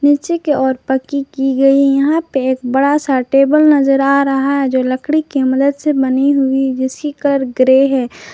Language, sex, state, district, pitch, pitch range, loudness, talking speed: Hindi, female, Jharkhand, Garhwa, 275 Hz, 265-285 Hz, -14 LUFS, 200 wpm